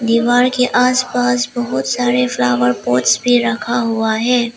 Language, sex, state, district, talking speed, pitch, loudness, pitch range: Hindi, female, Arunachal Pradesh, Lower Dibang Valley, 155 wpm, 240 Hz, -15 LUFS, 225-245 Hz